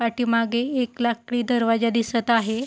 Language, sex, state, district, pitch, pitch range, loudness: Marathi, female, Maharashtra, Pune, 235 Hz, 230-240 Hz, -22 LUFS